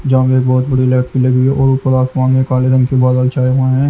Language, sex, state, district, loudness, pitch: Hindi, male, Haryana, Jhajjar, -13 LUFS, 130 Hz